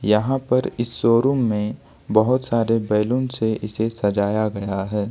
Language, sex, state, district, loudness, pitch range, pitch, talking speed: Hindi, male, Jharkhand, Ranchi, -21 LUFS, 105-125 Hz, 110 Hz, 155 wpm